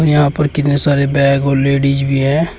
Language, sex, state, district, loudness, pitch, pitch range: Hindi, male, Uttar Pradesh, Shamli, -13 LUFS, 140 Hz, 140-145 Hz